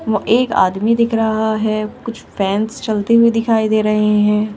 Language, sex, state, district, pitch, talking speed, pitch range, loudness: Hindi, female, Uttar Pradesh, Shamli, 220 Hz, 185 wpm, 210-230 Hz, -15 LUFS